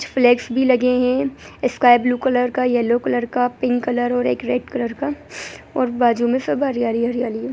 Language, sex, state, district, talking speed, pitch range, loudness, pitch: Hindi, male, Bihar, Gaya, 205 wpm, 240-255 Hz, -19 LUFS, 245 Hz